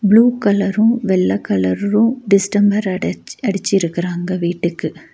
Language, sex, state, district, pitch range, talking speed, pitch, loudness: Tamil, female, Tamil Nadu, Nilgiris, 175-210 Hz, 95 wpm, 195 Hz, -16 LUFS